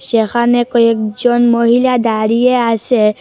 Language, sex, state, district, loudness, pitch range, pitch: Bengali, female, Assam, Hailakandi, -12 LUFS, 225-245 Hz, 235 Hz